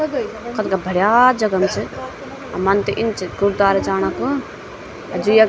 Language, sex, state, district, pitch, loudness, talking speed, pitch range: Garhwali, female, Uttarakhand, Tehri Garhwal, 205 Hz, -18 LUFS, 175 wpm, 195-225 Hz